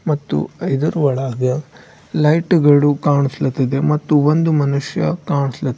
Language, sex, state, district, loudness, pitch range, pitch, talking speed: Kannada, male, Karnataka, Bidar, -17 LUFS, 135-155 Hz, 145 Hz, 105 wpm